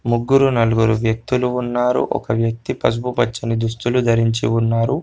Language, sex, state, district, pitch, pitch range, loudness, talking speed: Telugu, male, Telangana, Komaram Bheem, 115 Hz, 115-125 Hz, -18 LUFS, 130 wpm